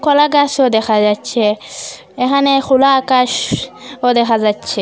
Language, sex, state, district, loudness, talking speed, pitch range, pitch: Bengali, female, Assam, Hailakandi, -13 LUFS, 110 wpm, 220-275 Hz, 255 Hz